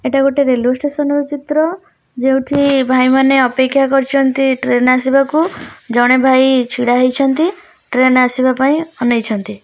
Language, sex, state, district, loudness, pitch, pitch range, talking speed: Odia, female, Odisha, Khordha, -13 LUFS, 265 Hz, 255-280 Hz, 130 wpm